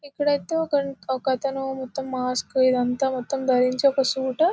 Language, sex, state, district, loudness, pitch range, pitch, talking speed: Telugu, female, Telangana, Nalgonda, -23 LUFS, 255-280 Hz, 265 Hz, 130 wpm